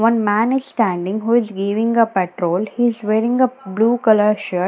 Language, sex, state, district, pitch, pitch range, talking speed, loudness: English, female, Odisha, Nuapada, 220 Hz, 195-235 Hz, 205 wpm, -17 LUFS